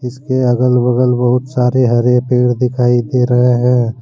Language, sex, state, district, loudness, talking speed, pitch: Hindi, male, Jharkhand, Deoghar, -13 LUFS, 165 wpm, 125 Hz